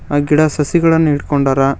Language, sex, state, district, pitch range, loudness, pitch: Kannada, male, Karnataka, Koppal, 140-155 Hz, -14 LUFS, 150 Hz